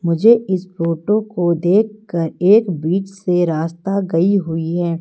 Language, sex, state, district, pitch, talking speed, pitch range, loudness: Hindi, female, Madhya Pradesh, Umaria, 180 Hz, 145 wpm, 170-200 Hz, -17 LUFS